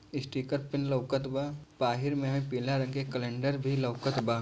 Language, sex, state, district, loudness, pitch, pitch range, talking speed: Bhojpuri, male, Bihar, Gopalganj, -32 LUFS, 135 Hz, 130-140 Hz, 175 wpm